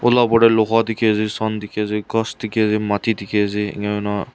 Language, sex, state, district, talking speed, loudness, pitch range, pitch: Nagamese, male, Nagaland, Kohima, 235 wpm, -19 LUFS, 105-115 Hz, 110 Hz